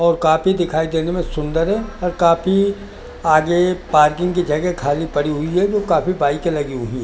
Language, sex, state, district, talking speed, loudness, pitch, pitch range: Hindi, male, Delhi, New Delhi, 195 wpm, -18 LUFS, 170 Hz, 150-180 Hz